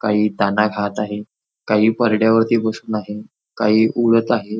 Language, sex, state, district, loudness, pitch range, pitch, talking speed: Marathi, male, Maharashtra, Nagpur, -18 LUFS, 105-115 Hz, 110 Hz, 155 wpm